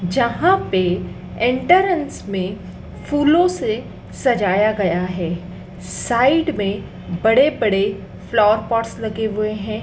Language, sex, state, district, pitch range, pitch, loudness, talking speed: Hindi, female, Madhya Pradesh, Dhar, 195-270 Hz, 220 Hz, -19 LUFS, 110 wpm